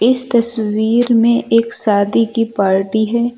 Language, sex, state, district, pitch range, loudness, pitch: Hindi, male, Uttar Pradesh, Lucknow, 220-235 Hz, -13 LUFS, 230 Hz